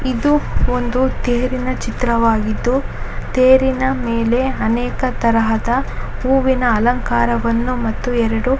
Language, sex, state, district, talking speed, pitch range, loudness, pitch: Kannada, female, Karnataka, Raichur, 85 wpm, 230-260 Hz, -17 LUFS, 245 Hz